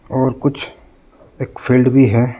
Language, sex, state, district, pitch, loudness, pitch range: Hindi, male, Arunachal Pradesh, Lower Dibang Valley, 130 Hz, -15 LUFS, 125-135 Hz